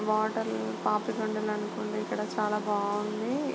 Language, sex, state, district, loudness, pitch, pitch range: Telugu, female, Andhra Pradesh, Guntur, -31 LUFS, 210 Hz, 210-215 Hz